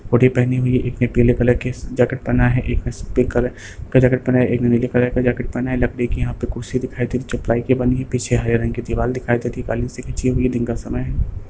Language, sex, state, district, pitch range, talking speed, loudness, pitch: Hindi, male, Bihar, Lakhisarai, 120-125 Hz, 310 wpm, -19 LUFS, 120 Hz